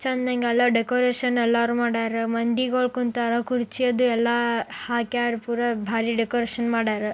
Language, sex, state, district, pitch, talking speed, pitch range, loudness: Kannada, female, Karnataka, Bijapur, 235 Hz, 85 wpm, 230-245 Hz, -23 LUFS